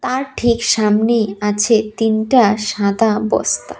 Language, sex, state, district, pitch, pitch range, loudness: Bengali, female, Tripura, West Tripura, 220 Hz, 210-235 Hz, -15 LUFS